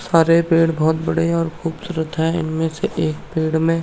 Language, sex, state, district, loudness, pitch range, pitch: Hindi, male, Uttarakhand, Tehri Garhwal, -19 LUFS, 160-165 Hz, 165 Hz